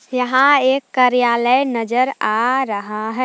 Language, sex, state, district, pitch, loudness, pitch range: Hindi, female, Jharkhand, Palamu, 250 Hz, -16 LUFS, 230-260 Hz